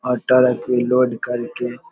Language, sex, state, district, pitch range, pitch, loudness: Hindi, male, Bihar, Vaishali, 120-125 Hz, 125 Hz, -18 LUFS